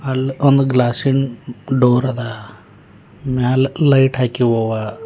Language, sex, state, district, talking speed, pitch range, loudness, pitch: Kannada, male, Karnataka, Bidar, 105 wpm, 120-135 Hz, -16 LUFS, 125 Hz